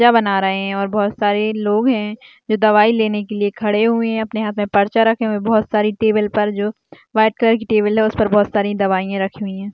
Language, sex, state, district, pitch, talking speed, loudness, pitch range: Hindi, female, Rajasthan, Churu, 210 Hz, 245 wpm, -17 LUFS, 205-220 Hz